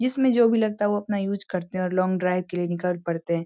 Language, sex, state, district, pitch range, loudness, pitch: Hindi, female, Bihar, Lakhisarai, 180-205 Hz, -24 LUFS, 185 Hz